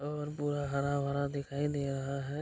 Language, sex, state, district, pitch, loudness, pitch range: Hindi, male, Bihar, Kishanganj, 140 Hz, -35 LUFS, 140-145 Hz